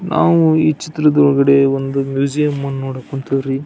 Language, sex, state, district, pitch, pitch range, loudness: Kannada, male, Karnataka, Belgaum, 140 Hz, 135-155 Hz, -15 LUFS